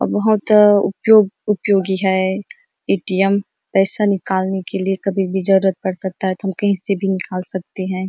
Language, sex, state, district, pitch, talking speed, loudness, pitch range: Hindi, female, Chhattisgarh, Bastar, 195 Hz, 185 wpm, -17 LUFS, 190-200 Hz